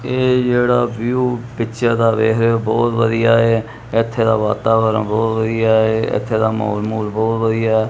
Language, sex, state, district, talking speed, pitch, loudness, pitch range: Punjabi, male, Punjab, Kapurthala, 165 wpm, 115 Hz, -16 LUFS, 110-115 Hz